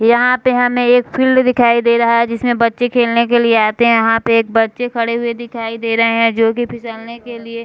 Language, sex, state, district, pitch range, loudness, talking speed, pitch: Hindi, female, Bihar, Sitamarhi, 230-245 Hz, -13 LUFS, 245 wpm, 235 Hz